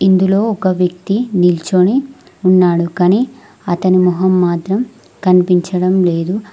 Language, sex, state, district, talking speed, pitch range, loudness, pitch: Telugu, female, Telangana, Mahabubabad, 100 wpm, 180-195 Hz, -14 LUFS, 185 Hz